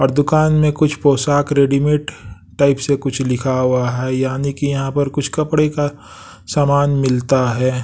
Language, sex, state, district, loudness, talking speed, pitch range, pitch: Hindi, male, Bihar, West Champaran, -16 LUFS, 170 wpm, 130-145 Hz, 140 Hz